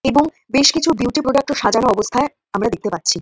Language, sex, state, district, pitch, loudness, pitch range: Bengali, female, West Bengal, North 24 Parganas, 275 Hz, -17 LUFS, 245-290 Hz